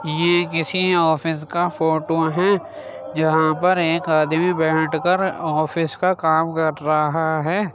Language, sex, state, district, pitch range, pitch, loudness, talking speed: Hindi, male, Uttar Pradesh, Jyotiba Phule Nagar, 160-175 Hz, 165 Hz, -19 LUFS, 140 wpm